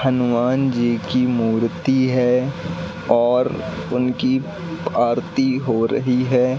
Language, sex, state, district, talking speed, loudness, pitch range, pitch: Hindi, male, Madhya Pradesh, Katni, 100 wpm, -19 LUFS, 120-130 Hz, 125 Hz